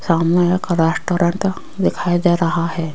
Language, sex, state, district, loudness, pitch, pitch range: Hindi, female, Rajasthan, Jaipur, -17 LUFS, 175 Hz, 165-180 Hz